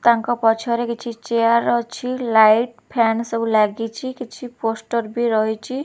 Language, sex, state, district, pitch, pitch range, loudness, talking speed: Odia, female, Odisha, Khordha, 235 Hz, 225-240 Hz, -19 LUFS, 145 wpm